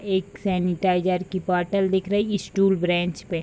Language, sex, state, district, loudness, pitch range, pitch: Hindi, female, Bihar, Bhagalpur, -23 LUFS, 180-195 Hz, 185 Hz